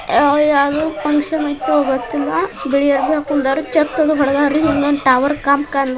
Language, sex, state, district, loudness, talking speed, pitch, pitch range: Kannada, male, Karnataka, Bijapur, -16 LUFS, 130 wpm, 290 Hz, 280-305 Hz